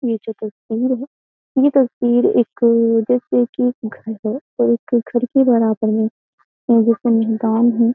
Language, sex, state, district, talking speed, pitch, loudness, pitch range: Hindi, female, Uttar Pradesh, Jyotiba Phule Nagar, 150 wpm, 235 Hz, -17 LUFS, 225-245 Hz